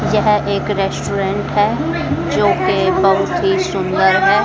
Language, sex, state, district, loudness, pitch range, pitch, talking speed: Hindi, female, Haryana, Charkhi Dadri, -16 LUFS, 190-210 Hz, 195 Hz, 135 wpm